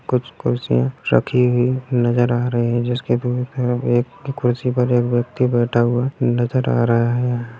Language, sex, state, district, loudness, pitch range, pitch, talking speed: Hindi, male, Bihar, Madhepura, -19 LUFS, 120-125 Hz, 120 Hz, 190 wpm